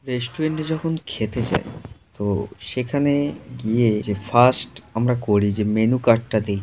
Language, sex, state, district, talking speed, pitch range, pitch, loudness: Bengali, male, West Bengal, Jhargram, 145 wpm, 105-130 Hz, 120 Hz, -21 LUFS